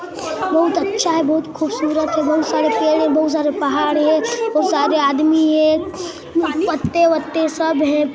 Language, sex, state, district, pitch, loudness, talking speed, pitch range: Hindi, male, Chhattisgarh, Sarguja, 315 Hz, -17 LUFS, 155 wpm, 305-335 Hz